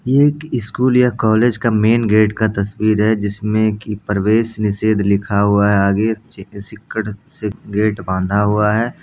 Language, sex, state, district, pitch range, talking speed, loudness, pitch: Hindi, male, Bihar, Jamui, 100-110 Hz, 175 wpm, -16 LUFS, 105 Hz